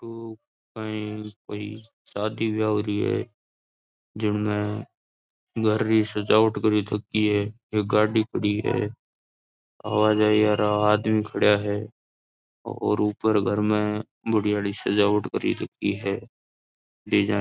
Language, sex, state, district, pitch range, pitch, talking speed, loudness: Marwari, male, Rajasthan, Nagaur, 105-110 Hz, 105 Hz, 125 wpm, -24 LUFS